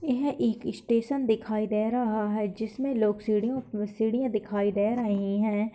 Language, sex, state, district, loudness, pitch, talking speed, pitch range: Hindi, female, Bihar, Lakhisarai, -28 LUFS, 215 Hz, 165 wpm, 210-240 Hz